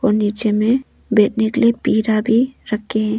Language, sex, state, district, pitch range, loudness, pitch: Hindi, female, Arunachal Pradesh, Longding, 215-235 Hz, -17 LUFS, 220 Hz